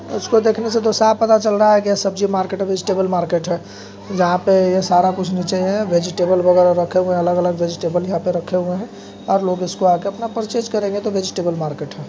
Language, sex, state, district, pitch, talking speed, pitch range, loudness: Hindi, male, Jharkhand, Sahebganj, 185 Hz, 235 wpm, 180-200 Hz, -17 LUFS